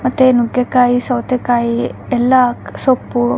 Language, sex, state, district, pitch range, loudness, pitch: Kannada, female, Karnataka, Raichur, 240-255 Hz, -14 LUFS, 245 Hz